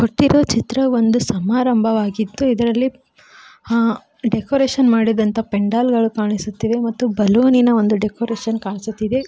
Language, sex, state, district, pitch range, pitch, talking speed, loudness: Kannada, female, Karnataka, Koppal, 220-250 Hz, 230 Hz, 95 wpm, -17 LUFS